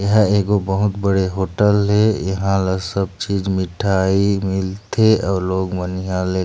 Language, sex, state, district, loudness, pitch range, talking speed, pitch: Chhattisgarhi, male, Chhattisgarh, Sarguja, -18 LUFS, 95-100 Hz, 160 wpm, 95 Hz